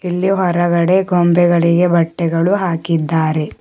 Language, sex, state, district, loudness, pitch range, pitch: Kannada, male, Karnataka, Bidar, -14 LUFS, 165-180 Hz, 175 Hz